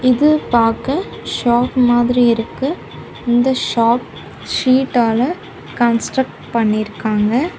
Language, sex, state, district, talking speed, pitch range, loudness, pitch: Tamil, female, Tamil Nadu, Kanyakumari, 80 wpm, 230-260 Hz, -16 LUFS, 240 Hz